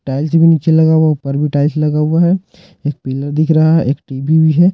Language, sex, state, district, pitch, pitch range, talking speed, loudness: Hindi, male, Jharkhand, Ranchi, 155 Hz, 145-165 Hz, 265 wpm, -13 LUFS